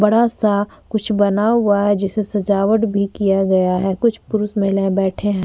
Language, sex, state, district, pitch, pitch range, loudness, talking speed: Hindi, female, Uttar Pradesh, Jyotiba Phule Nagar, 205 Hz, 195-215 Hz, -17 LUFS, 185 wpm